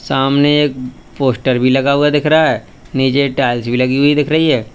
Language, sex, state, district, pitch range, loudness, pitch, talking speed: Hindi, male, Uttar Pradesh, Lalitpur, 130-145 Hz, -14 LUFS, 135 Hz, 215 wpm